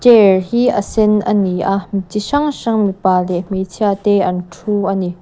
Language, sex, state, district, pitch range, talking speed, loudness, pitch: Mizo, female, Mizoram, Aizawl, 185-210 Hz, 220 wpm, -15 LUFS, 200 Hz